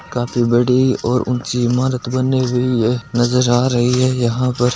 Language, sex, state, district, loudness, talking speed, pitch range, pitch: Marwari, male, Rajasthan, Nagaur, -16 LUFS, 175 wpm, 120-125 Hz, 125 Hz